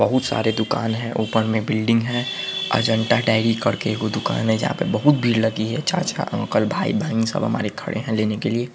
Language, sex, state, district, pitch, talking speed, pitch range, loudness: Hindi, male, Bihar, Araria, 115 Hz, 220 wpm, 110-120 Hz, -21 LUFS